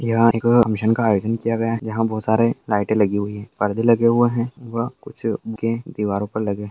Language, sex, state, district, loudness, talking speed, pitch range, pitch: Hindi, male, Bihar, Jamui, -20 LUFS, 230 wpm, 105-115 Hz, 115 Hz